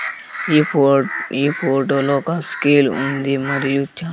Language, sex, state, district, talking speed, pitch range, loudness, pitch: Telugu, male, Andhra Pradesh, Sri Satya Sai, 145 wpm, 135-150 Hz, -18 LUFS, 140 Hz